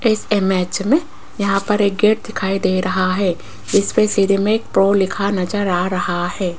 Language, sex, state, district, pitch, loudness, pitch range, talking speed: Hindi, female, Rajasthan, Jaipur, 195 Hz, -17 LUFS, 185-210 Hz, 190 wpm